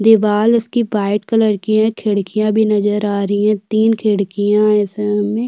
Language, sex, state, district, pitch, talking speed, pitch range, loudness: Hindi, female, Uttarakhand, Tehri Garhwal, 210 Hz, 175 wpm, 205-220 Hz, -15 LUFS